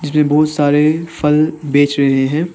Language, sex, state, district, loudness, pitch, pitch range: Hindi, male, Arunachal Pradesh, Papum Pare, -14 LUFS, 150 Hz, 145-155 Hz